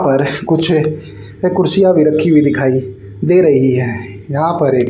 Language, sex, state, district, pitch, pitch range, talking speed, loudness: Hindi, male, Haryana, Charkhi Dadri, 145 Hz, 130-165 Hz, 170 wpm, -13 LUFS